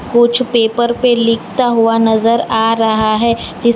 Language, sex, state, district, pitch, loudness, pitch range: Hindi, female, Gujarat, Valsad, 230 Hz, -13 LUFS, 225-235 Hz